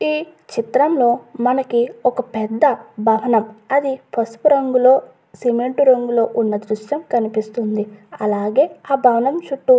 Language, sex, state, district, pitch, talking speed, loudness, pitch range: Telugu, female, Andhra Pradesh, Guntur, 245 Hz, 115 wpm, -18 LUFS, 225-270 Hz